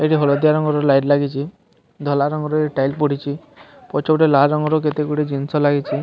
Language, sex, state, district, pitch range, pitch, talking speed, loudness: Odia, male, Odisha, Sambalpur, 140-155 Hz, 150 Hz, 200 wpm, -18 LUFS